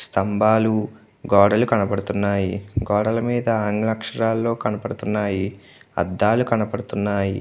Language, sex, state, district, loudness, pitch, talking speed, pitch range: Telugu, male, Andhra Pradesh, Krishna, -21 LUFS, 105 Hz, 80 wpm, 100-115 Hz